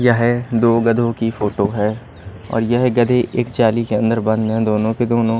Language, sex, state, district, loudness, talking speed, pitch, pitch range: Hindi, male, Odisha, Malkangiri, -17 LUFS, 200 wpm, 115 Hz, 110-120 Hz